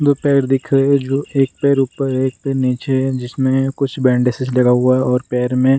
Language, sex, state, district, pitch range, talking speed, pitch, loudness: Hindi, male, Bihar, Gaya, 125-135 Hz, 250 wpm, 130 Hz, -16 LUFS